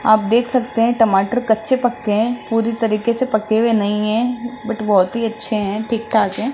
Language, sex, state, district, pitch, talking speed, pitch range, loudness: Hindi, male, Rajasthan, Jaipur, 225 Hz, 190 wpm, 215-235 Hz, -17 LUFS